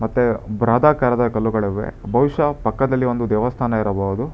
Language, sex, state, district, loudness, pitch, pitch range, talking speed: Kannada, male, Karnataka, Bangalore, -19 LUFS, 120 Hz, 110-125 Hz, 110 wpm